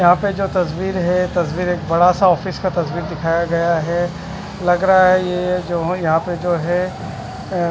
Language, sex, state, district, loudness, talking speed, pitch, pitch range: Hindi, male, Punjab, Fazilka, -18 LUFS, 200 wpm, 175 Hz, 170-185 Hz